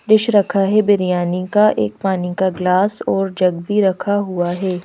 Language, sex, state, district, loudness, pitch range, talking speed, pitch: Hindi, female, Madhya Pradesh, Bhopal, -16 LUFS, 180-205 Hz, 185 wpm, 190 Hz